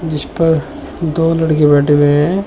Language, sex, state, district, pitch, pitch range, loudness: Hindi, male, Uttar Pradesh, Shamli, 155 Hz, 145-165 Hz, -13 LUFS